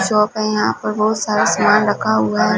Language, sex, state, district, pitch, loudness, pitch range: Hindi, female, Punjab, Fazilka, 210 Hz, -16 LUFS, 130-215 Hz